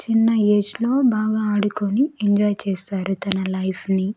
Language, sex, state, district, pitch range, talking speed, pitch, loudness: Telugu, female, Andhra Pradesh, Sri Satya Sai, 195-220 Hz, 145 wpm, 205 Hz, -20 LUFS